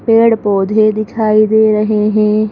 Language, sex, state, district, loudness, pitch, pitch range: Hindi, female, Madhya Pradesh, Bhopal, -12 LUFS, 215 Hz, 210-220 Hz